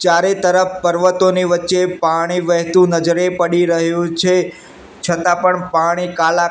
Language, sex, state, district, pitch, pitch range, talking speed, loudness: Gujarati, male, Gujarat, Gandhinagar, 175 Hz, 170-180 Hz, 130 wpm, -15 LUFS